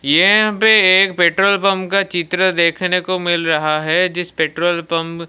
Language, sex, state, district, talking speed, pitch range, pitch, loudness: Hindi, male, Odisha, Malkangiri, 180 wpm, 170-190 Hz, 180 Hz, -14 LUFS